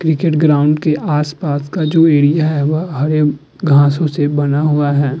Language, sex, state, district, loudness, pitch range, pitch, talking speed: Hindi, female, Uttar Pradesh, Hamirpur, -14 LUFS, 145-155 Hz, 150 Hz, 175 wpm